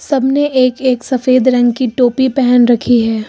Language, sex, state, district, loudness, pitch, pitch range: Hindi, female, Uttar Pradesh, Lucknow, -12 LUFS, 255 Hz, 245-260 Hz